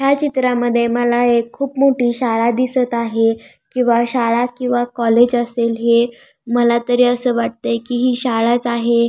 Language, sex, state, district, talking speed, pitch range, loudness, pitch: Marathi, female, Maharashtra, Pune, 160 wpm, 235-245 Hz, -16 LUFS, 240 Hz